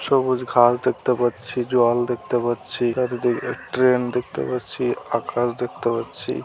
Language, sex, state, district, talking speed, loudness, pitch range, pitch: Bengali, male, West Bengal, Malda, 120 wpm, -22 LUFS, 120-125 Hz, 120 Hz